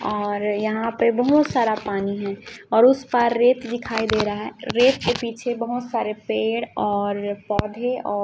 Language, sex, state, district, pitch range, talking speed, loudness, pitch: Hindi, female, Chhattisgarh, Raipur, 205-240 Hz, 175 wpm, -22 LUFS, 225 Hz